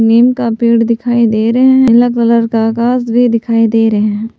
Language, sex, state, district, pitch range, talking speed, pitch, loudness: Hindi, female, Jharkhand, Palamu, 225-240 Hz, 220 wpm, 230 Hz, -11 LUFS